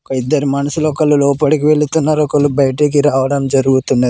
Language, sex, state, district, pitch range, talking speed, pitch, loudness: Telugu, male, Telangana, Mahabubabad, 135-150 Hz, 160 wpm, 145 Hz, -13 LUFS